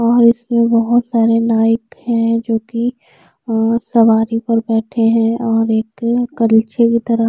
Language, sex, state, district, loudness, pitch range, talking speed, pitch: Hindi, female, Uttar Pradesh, Jyotiba Phule Nagar, -15 LUFS, 225-235 Hz, 155 wpm, 230 Hz